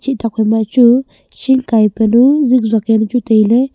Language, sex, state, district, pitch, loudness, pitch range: Wancho, female, Arunachal Pradesh, Longding, 230 Hz, -12 LUFS, 220-255 Hz